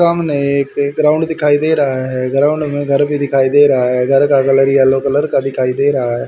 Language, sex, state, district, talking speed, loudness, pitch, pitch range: Hindi, male, Haryana, Rohtak, 240 wpm, -13 LUFS, 140 Hz, 135-145 Hz